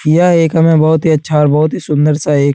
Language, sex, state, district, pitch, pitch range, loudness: Hindi, male, Uttar Pradesh, Etah, 155 Hz, 150-160 Hz, -11 LUFS